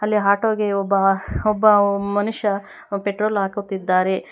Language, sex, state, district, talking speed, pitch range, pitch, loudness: Kannada, female, Karnataka, Bangalore, 110 wpm, 195-210 Hz, 200 Hz, -20 LUFS